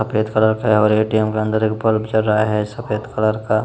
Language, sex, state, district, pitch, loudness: Hindi, male, Uttar Pradesh, Jalaun, 110 Hz, -18 LUFS